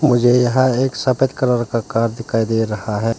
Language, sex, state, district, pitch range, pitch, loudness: Hindi, male, Arunachal Pradesh, Lower Dibang Valley, 115-125 Hz, 120 Hz, -17 LUFS